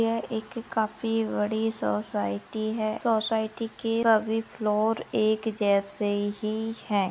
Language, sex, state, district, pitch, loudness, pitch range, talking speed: Hindi, female, Goa, North and South Goa, 220 Hz, -27 LUFS, 210-225 Hz, 120 wpm